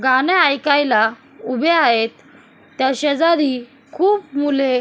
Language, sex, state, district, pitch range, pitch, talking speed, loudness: Marathi, female, Maharashtra, Solapur, 255-295 Hz, 275 Hz, 100 wpm, -17 LUFS